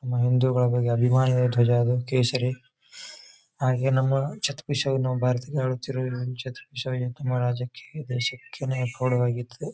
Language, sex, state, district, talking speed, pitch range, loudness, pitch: Kannada, male, Karnataka, Bijapur, 130 wpm, 125-130 Hz, -25 LUFS, 125 Hz